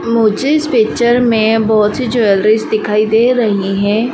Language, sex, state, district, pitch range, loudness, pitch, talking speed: Hindi, female, Madhya Pradesh, Dhar, 210-240 Hz, -12 LUFS, 220 Hz, 160 wpm